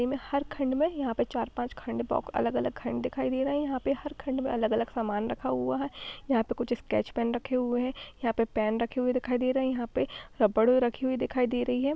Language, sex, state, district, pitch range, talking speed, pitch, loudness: Hindi, female, Andhra Pradesh, Anantapur, 235-265 Hz, 260 wpm, 250 Hz, -30 LUFS